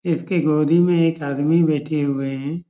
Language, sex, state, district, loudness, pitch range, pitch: Hindi, male, Bihar, Saran, -19 LUFS, 145-170 Hz, 155 Hz